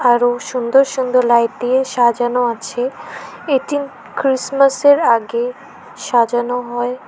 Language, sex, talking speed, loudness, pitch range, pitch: Bengali, female, 100 wpm, -16 LUFS, 240-265 Hz, 250 Hz